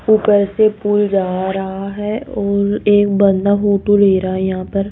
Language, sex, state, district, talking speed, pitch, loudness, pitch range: Hindi, female, Rajasthan, Jaipur, 185 wpm, 200 Hz, -15 LUFS, 195-205 Hz